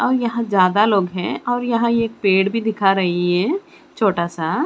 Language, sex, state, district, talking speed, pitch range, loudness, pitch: Hindi, female, Chandigarh, Chandigarh, 195 wpm, 185-235 Hz, -18 LUFS, 210 Hz